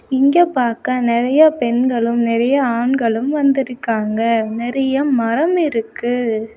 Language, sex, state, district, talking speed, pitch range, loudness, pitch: Tamil, female, Tamil Nadu, Kanyakumari, 90 wpm, 230-270 Hz, -16 LUFS, 245 Hz